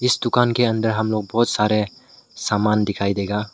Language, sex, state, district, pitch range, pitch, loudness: Hindi, male, Meghalaya, West Garo Hills, 105-120 Hz, 105 Hz, -20 LUFS